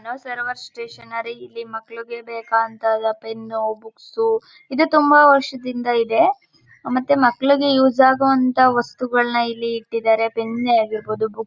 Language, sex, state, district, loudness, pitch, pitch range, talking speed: Kannada, female, Karnataka, Mysore, -18 LUFS, 235 Hz, 225-265 Hz, 110 wpm